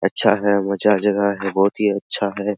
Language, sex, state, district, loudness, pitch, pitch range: Hindi, male, Bihar, Araria, -19 LUFS, 100 Hz, 100-105 Hz